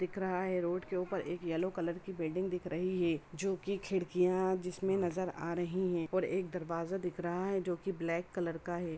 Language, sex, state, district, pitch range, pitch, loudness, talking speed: Hindi, female, Bihar, Samastipur, 170-185 Hz, 180 Hz, -36 LUFS, 225 wpm